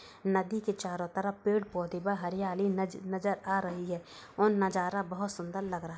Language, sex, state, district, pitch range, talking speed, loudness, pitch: Hindi, female, Uttar Pradesh, Budaun, 180-200 Hz, 200 wpm, -33 LUFS, 190 Hz